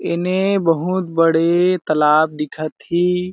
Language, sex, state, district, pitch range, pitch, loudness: Awadhi, male, Chhattisgarh, Balrampur, 155-180 Hz, 170 Hz, -17 LUFS